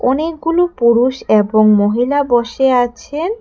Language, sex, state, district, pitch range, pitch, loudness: Bengali, female, Tripura, West Tripura, 235-300 Hz, 250 Hz, -14 LUFS